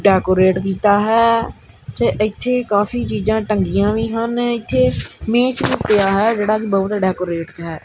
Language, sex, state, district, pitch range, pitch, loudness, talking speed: Punjabi, male, Punjab, Kapurthala, 190-225 Hz, 205 Hz, -17 LUFS, 155 wpm